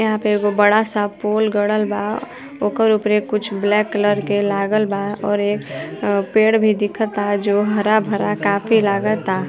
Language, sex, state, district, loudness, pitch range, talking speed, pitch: Bhojpuri, female, Uttar Pradesh, Varanasi, -18 LUFS, 205-215 Hz, 165 wpm, 210 Hz